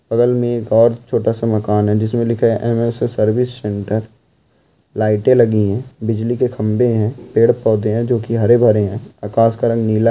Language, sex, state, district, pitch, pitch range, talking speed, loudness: Hindi, male, Bihar, Bhagalpur, 115 Hz, 110-120 Hz, 170 wpm, -16 LUFS